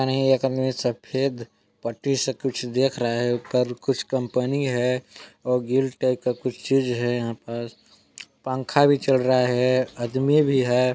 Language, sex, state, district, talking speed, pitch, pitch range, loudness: Hindi, male, Chhattisgarh, Balrampur, 155 wpm, 125 Hz, 120-135 Hz, -23 LUFS